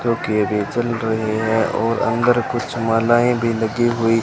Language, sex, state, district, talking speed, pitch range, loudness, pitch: Hindi, male, Rajasthan, Bikaner, 200 wpm, 110-120 Hz, -19 LUFS, 115 Hz